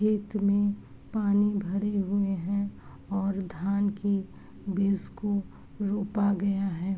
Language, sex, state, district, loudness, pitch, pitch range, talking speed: Hindi, female, Uttar Pradesh, Varanasi, -29 LUFS, 200 Hz, 195-205 Hz, 120 wpm